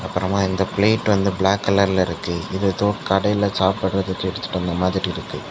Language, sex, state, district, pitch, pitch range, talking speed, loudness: Tamil, male, Tamil Nadu, Kanyakumari, 95 Hz, 95-100 Hz, 165 wpm, -20 LUFS